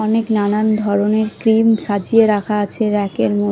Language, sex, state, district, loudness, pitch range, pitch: Bengali, female, Odisha, Khordha, -16 LUFS, 205-220 Hz, 210 Hz